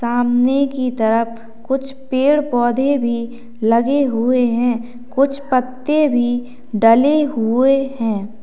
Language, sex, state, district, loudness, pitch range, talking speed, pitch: Hindi, female, Uttar Pradesh, Lalitpur, -17 LUFS, 235-270 Hz, 115 wpm, 245 Hz